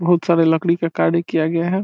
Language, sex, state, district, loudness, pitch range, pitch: Hindi, male, Bihar, Saran, -18 LUFS, 165-170 Hz, 170 Hz